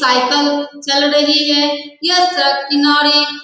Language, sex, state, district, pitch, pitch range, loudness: Hindi, female, Bihar, Saran, 290 Hz, 285-295 Hz, -13 LUFS